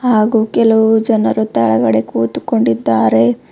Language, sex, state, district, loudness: Kannada, female, Karnataka, Bidar, -13 LUFS